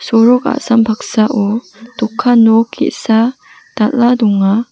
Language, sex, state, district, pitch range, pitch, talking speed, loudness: Garo, female, Meghalaya, West Garo Hills, 220-245 Hz, 230 Hz, 100 wpm, -12 LUFS